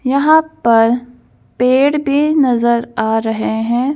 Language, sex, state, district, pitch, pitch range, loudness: Hindi, female, Madhya Pradesh, Bhopal, 250 Hz, 235-285 Hz, -14 LUFS